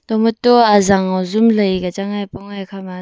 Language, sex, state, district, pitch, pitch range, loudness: Wancho, female, Arunachal Pradesh, Longding, 200 Hz, 190-220 Hz, -14 LUFS